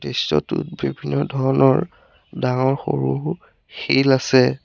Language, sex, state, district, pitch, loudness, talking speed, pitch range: Assamese, male, Assam, Sonitpur, 130 Hz, -20 LUFS, 90 wpm, 125-135 Hz